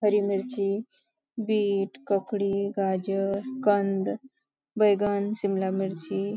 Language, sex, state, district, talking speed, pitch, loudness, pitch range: Hindi, female, Maharashtra, Nagpur, 85 wpm, 200 Hz, -27 LUFS, 195-215 Hz